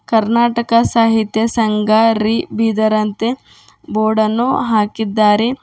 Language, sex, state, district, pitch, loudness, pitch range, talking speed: Kannada, female, Karnataka, Bidar, 220 Hz, -15 LUFS, 215-230 Hz, 95 wpm